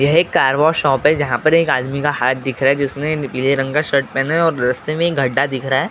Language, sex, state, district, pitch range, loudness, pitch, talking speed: Hindi, male, Maharashtra, Gondia, 135-155 Hz, -16 LUFS, 140 Hz, 295 wpm